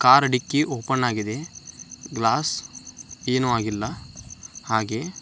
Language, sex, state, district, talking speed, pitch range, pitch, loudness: Kannada, male, Karnataka, Dharwad, 105 wpm, 110-135 Hz, 125 Hz, -24 LUFS